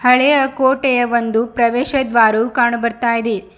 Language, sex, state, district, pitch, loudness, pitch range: Kannada, female, Karnataka, Bidar, 240 Hz, -15 LUFS, 230-260 Hz